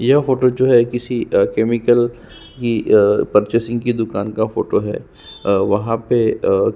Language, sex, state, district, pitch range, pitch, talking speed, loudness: Hindi, male, Chhattisgarh, Sukma, 110-120 Hz, 115 Hz, 160 wpm, -17 LUFS